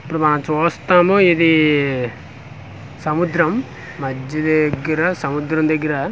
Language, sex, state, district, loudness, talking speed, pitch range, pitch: Telugu, male, Andhra Pradesh, Manyam, -17 LUFS, 100 wpm, 140-165 Hz, 155 Hz